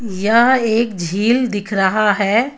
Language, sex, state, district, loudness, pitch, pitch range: Hindi, female, Jharkhand, Ranchi, -15 LUFS, 220 Hz, 200-235 Hz